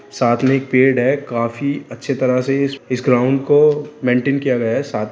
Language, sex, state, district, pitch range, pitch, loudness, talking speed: Hindi, male, Bihar, Purnia, 125-140 Hz, 130 Hz, -17 LUFS, 210 wpm